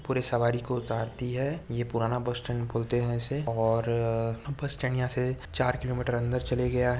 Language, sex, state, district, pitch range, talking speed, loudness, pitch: Hindi, male, Chhattisgarh, Bastar, 120-125 Hz, 215 wpm, -30 LUFS, 125 Hz